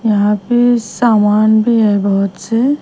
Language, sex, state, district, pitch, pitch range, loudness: Hindi, female, Himachal Pradesh, Shimla, 220 Hz, 205-235 Hz, -13 LUFS